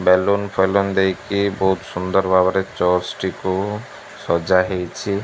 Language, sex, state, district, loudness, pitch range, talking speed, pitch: Odia, male, Odisha, Malkangiri, -19 LUFS, 90-100 Hz, 115 wpm, 95 Hz